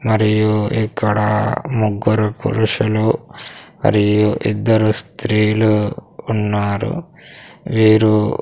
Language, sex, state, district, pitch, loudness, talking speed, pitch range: Telugu, male, Andhra Pradesh, Sri Satya Sai, 110 Hz, -16 LUFS, 65 wpm, 105-110 Hz